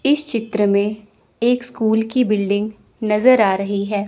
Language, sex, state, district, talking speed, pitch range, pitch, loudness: Hindi, female, Chandigarh, Chandigarh, 160 wpm, 205-240 Hz, 215 Hz, -18 LUFS